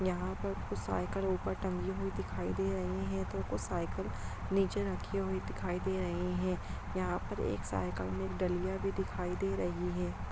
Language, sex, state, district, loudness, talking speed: Hindi, female, Bihar, Begusarai, -36 LUFS, 190 wpm